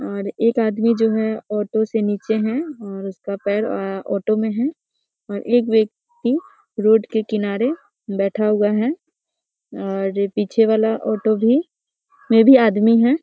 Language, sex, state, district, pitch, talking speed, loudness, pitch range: Hindi, female, Bihar, Muzaffarpur, 220 Hz, 155 wpm, -19 LUFS, 205-235 Hz